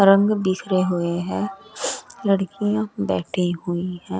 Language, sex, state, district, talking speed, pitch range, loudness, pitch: Hindi, female, Chandigarh, Chandigarh, 115 wpm, 175-195 Hz, -23 LUFS, 185 Hz